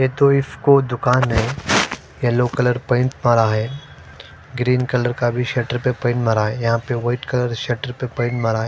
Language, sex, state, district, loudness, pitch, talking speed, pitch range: Hindi, male, Punjab, Fazilka, -19 LUFS, 120 Hz, 195 wpm, 115-125 Hz